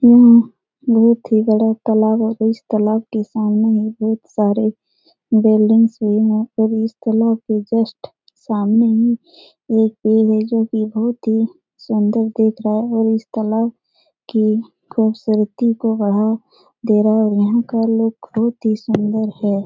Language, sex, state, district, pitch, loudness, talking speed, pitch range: Hindi, female, Bihar, Jahanabad, 220 Hz, -16 LUFS, 155 wpm, 215-225 Hz